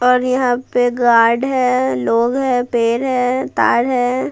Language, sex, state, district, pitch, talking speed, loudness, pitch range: Hindi, female, Bihar, Patna, 245 Hz, 165 wpm, -15 LUFS, 240-255 Hz